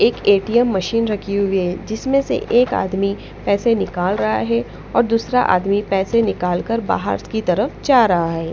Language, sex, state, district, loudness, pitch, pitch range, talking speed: Hindi, female, Punjab, Pathankot, -18 LUFS, 200 Hz, 180-230 Hz, 175 wpm